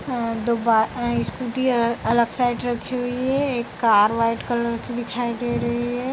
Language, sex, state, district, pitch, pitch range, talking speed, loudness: Hindi, female, Bihar, Bhagalpur, 240 Hz, 235-245 Hz, 185 wpm, -22 LUFS